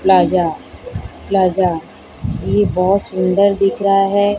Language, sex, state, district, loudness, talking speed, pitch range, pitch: Hindi, female, Odisha, Sambalpur, -15 LUFS, 110 wpm, 180-200 Hz, 195 Hz